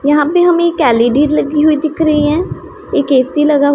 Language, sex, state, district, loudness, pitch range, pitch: Hindi, female, Punjab, Pathankot, -12 LUFS, 285-310 Hz, 295 Hz